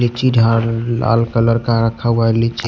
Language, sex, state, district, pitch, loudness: Hindi, male, Punjab, Pathankot, 115 Hz, -15 LUFS